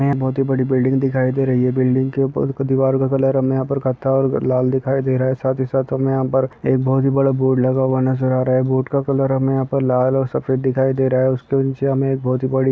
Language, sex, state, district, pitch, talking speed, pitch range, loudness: Hindi, male, Andhra Pradesh, Chittoor, 130 Hz, 285 wpm, 130-135 Hz, -18 LUFS